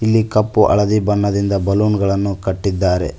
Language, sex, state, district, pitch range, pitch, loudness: Kannada, male, Karnataka, Koppal, 95-105 Hz, 100 Hz, -16 LUFS